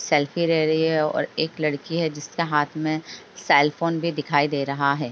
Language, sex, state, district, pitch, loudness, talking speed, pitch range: Hindi, female, Bihar, Sitamarhi, 155 Hz, -23 LUFS, 200 wpm, 145-165 Hz